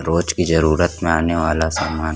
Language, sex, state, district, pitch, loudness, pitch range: Hindi, male, Chhattisgarh, Korba, 80 Hz, -18 LUFS, 80-85 Hz